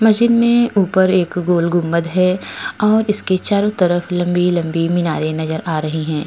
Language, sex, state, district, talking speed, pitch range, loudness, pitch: Hindi, female, Uttar Pradesh, Etah, 165 wpm, 170-200 Hz, -16 LUFS, 180 Hz